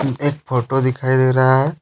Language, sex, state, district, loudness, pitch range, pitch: Hindi, male, Jharkhand, Deoghar, -17 LUFS, 130-135 Hz, 130 Hz